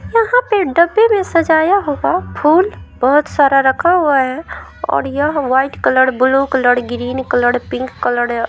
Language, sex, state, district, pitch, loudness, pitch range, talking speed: Hindi, female, Bihar, Vaishali, 280 Hz, -14 LUFS, 260-340 Hz, 165 wpm